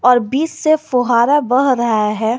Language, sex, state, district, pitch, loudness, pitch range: Hindi, male, Jharkhand, Garhwa, 250 Hz, -15 LUFS, 235-290 Hz